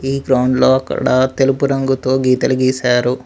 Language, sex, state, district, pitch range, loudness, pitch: Telugu, male, Telangana, Mahabubabad, 130-135 Hz, -15 LUFS, 130 Hz